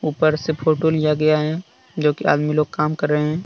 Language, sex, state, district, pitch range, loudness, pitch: Hindi, male, Jharkhand, Deoghar, 150-155 Hz, -19 LUFS, 155 Hz